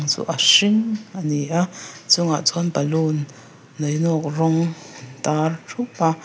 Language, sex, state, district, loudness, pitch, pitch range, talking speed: Mizo, female, Mizoram, Aizawl, -20 LUFS, 160 Hz, 150-170 Hz, 145 wpm